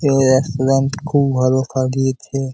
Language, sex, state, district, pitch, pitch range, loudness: Bengali, male, West Bengal, Malda, 135 Hz, 130-135 Hz, -17 LUFS